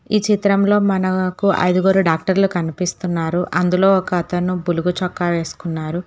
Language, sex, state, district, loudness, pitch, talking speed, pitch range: Telugu, female, Telangana, Hyderabad, -18 LUFS, 180 Hz, 150 wpm, 175-195 Hz